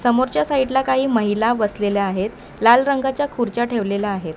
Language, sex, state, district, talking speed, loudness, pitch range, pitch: Marathi, male, Maharashtra, Mumbai Suburban, 165 wpm, -19 LUFS, 205-260 Hz, 230 Hz